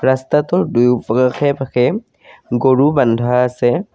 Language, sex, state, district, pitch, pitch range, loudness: Assamese, male, Assam, Kamrup Metropolitan, 130 Hz, 125-140 Hz, -15 LUFS